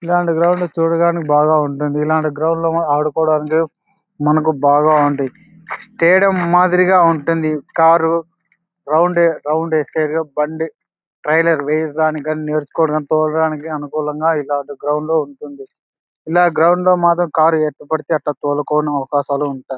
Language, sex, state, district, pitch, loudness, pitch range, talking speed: Telugu, male, Andhra Pradesh, Anantapur, 155 Hz, -16 LUFS, 150-165 Hz, 120 wpm